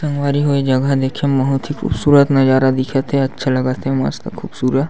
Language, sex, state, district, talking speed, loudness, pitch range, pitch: Chhattisgarhi, male, Chhattisgarh, Sarguja, 210 wpm, -16 LUFS, 130-140 Hz, 135 Hz